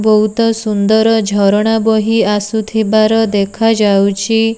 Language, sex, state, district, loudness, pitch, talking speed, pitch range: Odia, female, Odisha, Nuapada, -12 LUFS, 220 Hz, 80 wpm, 205-225 Hz